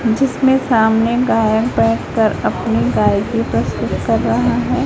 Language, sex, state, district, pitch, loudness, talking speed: Hindi, female, Chhattisgarh, Raipur, 225 Hz, -15 LUFS, 125 wpm